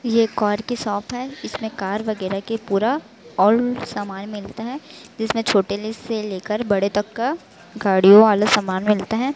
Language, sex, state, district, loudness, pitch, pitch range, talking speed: Hindi, female, Chhattisgarh, Raipur, -20 LUFS, 215 Hz, 200-230 Hz, 175 wpm